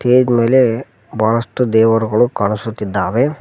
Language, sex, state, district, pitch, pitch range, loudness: Kannada, male, Karnataka, Koppal, 115 Hz, 110-125 Hz, -15 LUFS